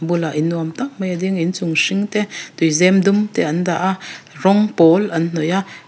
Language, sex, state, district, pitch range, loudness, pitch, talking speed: Mizo, female, Mizoram, Aizawl, 165-195 Hz, -17 LUFS, 180 Hz, 235 wpm